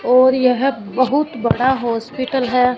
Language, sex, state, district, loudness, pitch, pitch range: Hindi, female, Punjab, Fazilka, -17 LUFS, 255 Hz, 245-260 Hz